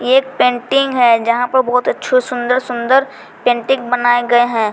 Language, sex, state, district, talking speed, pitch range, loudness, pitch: Hindi, female, Bihar, Patna, 175 wpm, 240-260 Hz, -14 LUFS, 245 Hz